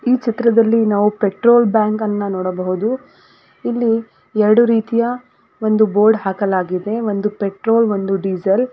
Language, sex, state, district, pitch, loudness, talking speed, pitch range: Kannada, female, Karnataka, Gulbarga, 215 Hz, -16 LUFS, 125 wpm, 200-230 Hz